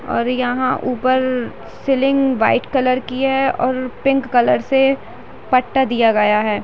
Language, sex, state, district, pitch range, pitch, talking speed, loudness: Hindi, female, Bihar, East Champaran, 245-270 Hz, 255 Hz, 155 wpm, -17 LUFS